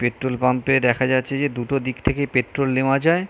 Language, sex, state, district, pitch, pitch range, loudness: Bengali, male, West Bengal, North 24 Parganas, 130 Hz, 125-140 Hz, -21 LUFS